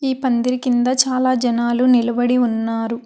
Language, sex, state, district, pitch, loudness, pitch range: Telugu, female, Telangana, Hyderabad, 245 Hz, -17 LUFS, 235-255 Hz